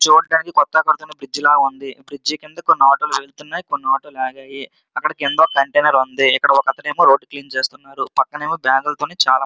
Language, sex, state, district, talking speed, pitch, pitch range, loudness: Telugu, male, Andhra Pradesh, Srikakulam, 185 wpm, 140 Hz, 135-155 Hz, -17 LUFS